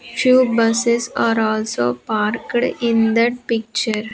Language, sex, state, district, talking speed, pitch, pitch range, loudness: English, female, Andhra Pradesh, Sri Satya Sai, 115 wpm, 230 Hz, 220-240 Hz, -18 LUFS